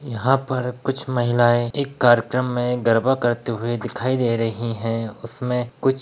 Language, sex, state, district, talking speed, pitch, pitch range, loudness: Hindi, male, Bihar, Begusarai, 170 wpm, 120 Hz, 115-130 Hz, -21 LUFS